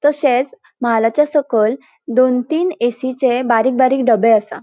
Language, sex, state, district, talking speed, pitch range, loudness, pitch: Konkani, female, Goa, North and South Goa, 130 wpm, 235-285 Hz, -15 LUFS, 255 Hz